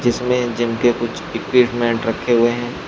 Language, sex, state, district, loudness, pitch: Hindi, male, Uttar Pradesh, Shamli, -18 LUFS, 120 Hz